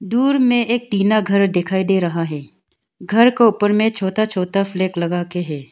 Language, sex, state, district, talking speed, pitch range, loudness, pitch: Hindi, female, Arunachal Pradesh, Longding, 190 wpm, 180-220 Hz, -17 LUFS, 195 Hz